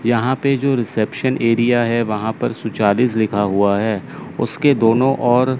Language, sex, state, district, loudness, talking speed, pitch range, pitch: Hindi, male, Chandigarh, Chandigarh, -17 LUFS, 160 wpm, 110-130 Hz, 115 Hz